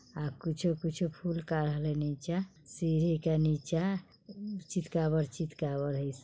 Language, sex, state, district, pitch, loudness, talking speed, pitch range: Bajjika, female, Bihar, Vaishali, 160 Hz, -33 LUFS, 105 wpm, 150-170 Hz